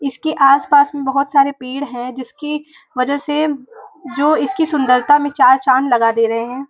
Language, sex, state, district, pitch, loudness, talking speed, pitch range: Hindi, female, Uttar Pradesh, Varanasi, 275 Hz, -15 LUFS, 180 wpm, 255-295 Hz